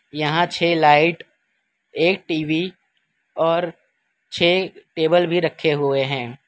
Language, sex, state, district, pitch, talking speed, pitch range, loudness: Hindi, male, Gujarat, Valsad, 165 Hz, 110 wpm, 150-175 Hz, -19 LUFS